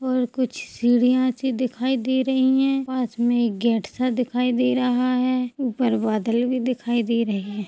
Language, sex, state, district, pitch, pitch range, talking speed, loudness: Hindi, female, Chhattisgarh, Sukma, 250 Hz, 235-255 Hz, 185 wpm, -22 LUFS